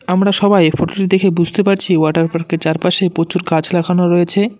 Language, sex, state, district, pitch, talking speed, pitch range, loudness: Bengali, male, West Bengal, Cooch Behar, 180 Hz, 185 wpm, 165-195 Hz, -14 LUFS